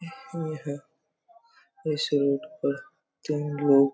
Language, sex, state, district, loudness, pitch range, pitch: Hindi, male, Chhattisgarh, Raigarh, -28 LUFS, 145-165 Hz, 150 Hz